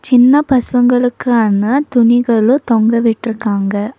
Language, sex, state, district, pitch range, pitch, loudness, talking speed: Tamil, female, Tamil Nadu, Nilgiris, 220-250 Hz, 235 Hz, -12 LUFS, 75 wpm